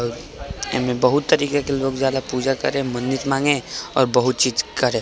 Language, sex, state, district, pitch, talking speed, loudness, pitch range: Hindi, male, Bihar, East Champaran, 130 Hz, 190 wpm, -20 LUFS, 125-140 Hz